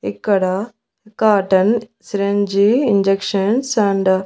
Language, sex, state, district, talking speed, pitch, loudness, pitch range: Telugu, female, Andhra Pradesh, Annamaya, 85 wpm, 200 Hz, -17 LUFS, 195-220 Hz